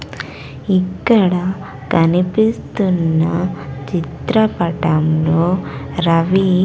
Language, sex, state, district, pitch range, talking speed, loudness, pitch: Telugu, female, Andhra Pradesh, Sri Satya Sai, 160-190 Hz, 35 wpm, -16 LUFS, 175 Hz